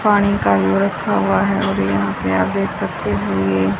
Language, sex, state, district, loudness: Hindi, female, Haryana, Rohtak, -17 LUFS